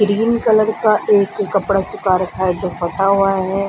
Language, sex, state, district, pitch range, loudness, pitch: Hindi, female, Bihar, Samastipur, 190-210 Hz, -16 LUFS, 195 Hz